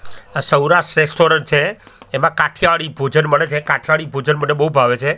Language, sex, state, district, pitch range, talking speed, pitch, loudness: Gujarati, male, Gujarat, Gandhinagar, 140-155 Hz, 175 wpm, 150 Hz, -15 LUFS